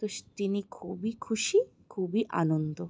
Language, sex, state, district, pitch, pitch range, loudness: Bengali, female, West Bengal, Jalpaiguri, 200 Hz, 175-220 Hz, -31 LUFS